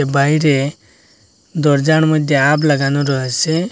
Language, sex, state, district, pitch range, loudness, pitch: Bengali, male, Assam, Hailakandi, 140-155 Hz, -15 LUFS, 145 Hz